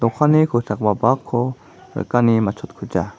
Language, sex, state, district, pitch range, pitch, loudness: Garo, male, Meghalaya, West Garo Hills, 110-130 Hz, 120 Hz, -19 LUFS